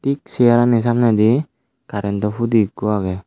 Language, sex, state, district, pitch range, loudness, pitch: Chakma, male, Tripura, Dhalai, 105-120 Hz, -17 LUFS, 115 Hz